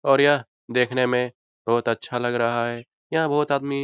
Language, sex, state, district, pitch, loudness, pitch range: Hindi, male, Bihar, Jahanabad, 125 Hz, -23 LUFS, 120-140 Hz